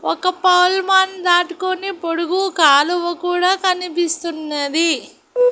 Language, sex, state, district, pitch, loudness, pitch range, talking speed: Telugu, female, Andhra Pradesh, Annamaya, 355 Hz, -17 LUFS, 335-370 Hz, 75 wpm